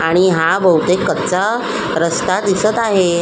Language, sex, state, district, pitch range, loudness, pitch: Marathi, female, Maharashtra, Solapur, 170-195 Hz, -15 LUFS, 185 Hz